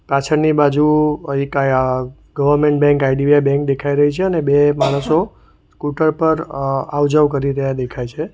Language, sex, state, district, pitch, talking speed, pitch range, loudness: Gujarati, male, Gujarat, Valsad, 145 Hz, 165 wpm, 140-150 Hz, -16 LUFS